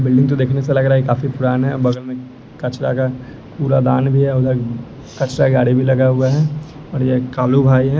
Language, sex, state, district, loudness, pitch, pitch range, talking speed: Hindi, male, Bihar, West Champaran, -16 LUFS, 130 Hz, 125-135 Hz, 215 wpm